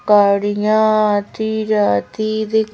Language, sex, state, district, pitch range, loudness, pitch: Hindi, female, Madhya Pradesh, Bhopal, 205-220 Hz, -16 LUFS, 215 Hz